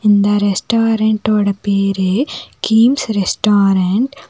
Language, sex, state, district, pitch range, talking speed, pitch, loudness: Tamil, female, Tamil Nadu, Nilgiris, 200-225 Hz, 85 wpm, 210 Hz, -14 LUFS